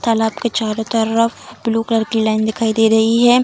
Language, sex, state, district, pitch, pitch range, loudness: Hindi, female, Bihar, Darbhanga, 225 Hz, 220-230 Hz, -16 LUFS